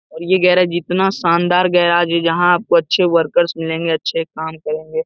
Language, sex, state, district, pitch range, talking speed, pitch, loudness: Hindi, male, Bihar, Lakhisarai, 165-180 Hz, 180 wpm, 170 Hz, -15 LUFS